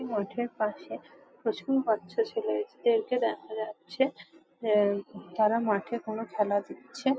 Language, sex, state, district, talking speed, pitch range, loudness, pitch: Bengali, female, West Bengal, Jalpaiguri, 135 wpm, 210-265 Hz, -30 LUFS, 225 Hz